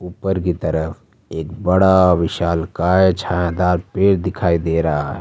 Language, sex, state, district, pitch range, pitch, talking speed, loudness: Hindi, male, Jharkhand, Ranchi, 85-95 Hz, 90 Hz, 140 wpm, -17 LUFS